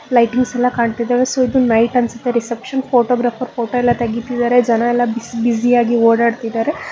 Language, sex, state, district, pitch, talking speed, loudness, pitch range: Kannada, female, Karnataka, Bangalore, 240 Hz, 145 wpm, -16 LUFS, 235-250 Hz